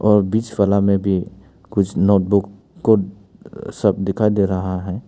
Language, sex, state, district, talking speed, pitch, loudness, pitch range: Hindi, male, Arunachal Pradesh, Papum Pare, 155 wpm, 100 Hz, -18 LUFS, 95-105 Hz